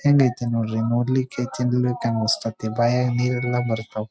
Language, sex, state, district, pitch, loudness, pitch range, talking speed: Kannada, male, Karnataka, Dharwad, 120 Hz, -22 LUFS, 115-125 Hz, 145 wpm